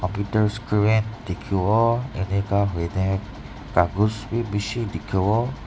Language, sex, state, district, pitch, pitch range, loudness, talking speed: Nagamese, male, Nagaland, Dimapur, 105 Hz, 95-110 Hz, -23 LUFS, 75 wpm